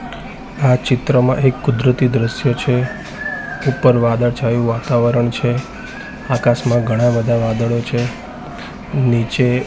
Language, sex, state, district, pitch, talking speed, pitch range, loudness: Gujarati, male, Gujarat, Gandhinagar, 120 Hz, 100 wpm, 120-125 Hz, -16 LUFS